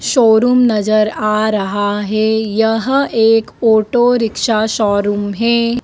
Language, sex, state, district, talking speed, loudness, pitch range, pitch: Hindi, female, Madhya Pradesh, Dhar, 105 wpm, -14 LUFS, 215-235 Hz, 220 Hz